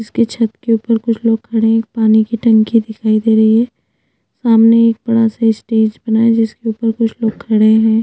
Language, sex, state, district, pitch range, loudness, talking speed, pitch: Hindi, female, Chhattisgarh, Sukma, 220-230 Hz, -13 LUFS, 215 wpm, 225 Hz